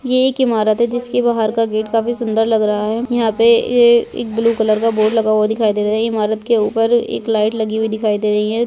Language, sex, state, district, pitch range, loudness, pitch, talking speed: Hindi, female, Bihar, Darbhanga, 215-235 Hz, -15 LUFS, 225 Hz, 265 wpm